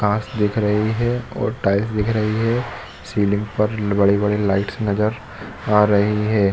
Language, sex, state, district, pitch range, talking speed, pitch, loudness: Hindi, male, Chhattisgarh, Bilaspur, 100-110 Hz, 155 wpm, 105 Hz, -19 LUFS